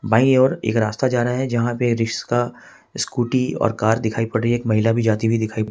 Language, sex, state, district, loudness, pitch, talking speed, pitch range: Hindi, male, Jharkhand, Ranchi, -20 LUFS, 115 Hz, 230 wpm, 110-120 Hz